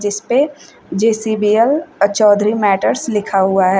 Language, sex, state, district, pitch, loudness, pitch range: Hindi, female, Uttar Pradesh, Shamli, 210 Hz, -15 LUFS, 200-225 Hz